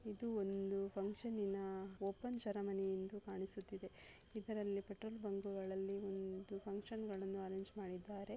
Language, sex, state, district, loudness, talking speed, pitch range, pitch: Kannada, female, Karnataka, Raichur, -46 LUFS, 115 wpm, 195-205 Hz, 200 Hz